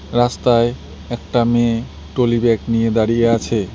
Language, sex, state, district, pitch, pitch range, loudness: Bengali, male, West Bengal, Cooch Behar, 115 Hz, 115-120 Hz, -17 LUFS